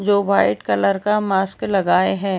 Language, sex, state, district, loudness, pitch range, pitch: Hindi, female, Uttar Pradesh, Deoria, -18 LUFS, 160-200 Hz, 195 Hz